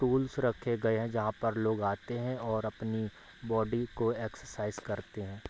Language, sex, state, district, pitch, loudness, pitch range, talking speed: Hindi, male, Bihar, Bhagalpur, 110 Hz, -34 LUFS, 110-120 Hz, 175 wpm